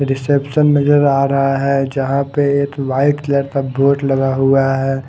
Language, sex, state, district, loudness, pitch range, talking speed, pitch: Hindi, male, Haryana, Rohtak, -15 LUFS, 135-140 Hz, 175 wpm, 140 Hz